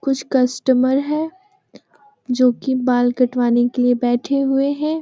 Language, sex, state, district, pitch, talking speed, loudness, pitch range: Hindi, female, Bihar, Jamui, 260 Hz, 145 wpm, -18 LUFS, 245-285 Hz